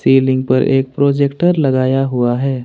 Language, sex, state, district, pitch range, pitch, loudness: Hindi, male, Jharkhand, Ranchi, 130-140 Hz, 135 Hz, -14 LUFS